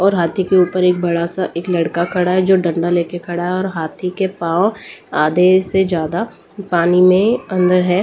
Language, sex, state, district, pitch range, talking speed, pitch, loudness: Hindi, female, Delhi, New Delhi, 170-190 Hz, 195 wpm, 180 Hz, -16 LUFS